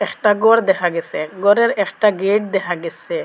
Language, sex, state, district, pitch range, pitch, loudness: Bengali, female, Assam, Hailakandi, 185-215 Hz, 200 Hz, -17 LUFS